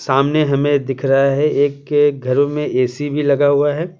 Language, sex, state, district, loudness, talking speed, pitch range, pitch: Hindi, male, Bihar, Patna, -16 LUFS, 210 wpm, 135-145 Hz, 145 Hz